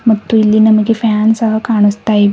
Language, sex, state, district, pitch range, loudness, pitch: Kannada, female, Karnataka, Bidar, 210-225 Hz, -11 LUFS, 220 Hz